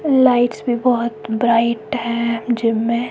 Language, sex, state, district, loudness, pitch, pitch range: Hindi, female, Himachal Pradesh, Shimla, -18 LUFS, 235 Hz, 230-240 Hz